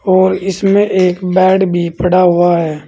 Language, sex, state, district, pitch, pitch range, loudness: Hindi, male, Uttar Pradesh, Saharanpur, 185 Hz, 175-190 Hz, -12 LUFS